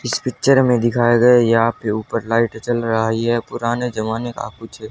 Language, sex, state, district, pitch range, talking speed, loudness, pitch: Hindi, male, Haryana, Charkhi Dadri, 115-120 Hz, 210 wpm, -17 LUFS, 115 Hz